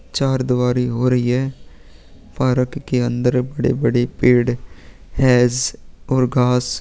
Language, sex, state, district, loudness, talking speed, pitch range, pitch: Hindi, male, Chhattisgarh, Sukma, -18 LUFS, 125 wpm, 120-130 Hz, 125 Hz